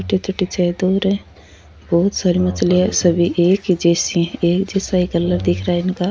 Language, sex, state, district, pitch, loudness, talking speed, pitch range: Rajasthani, female, Rajasthan, Churu, 180 Hz, -17 LUFS, 165 wpm, 170-185 Hz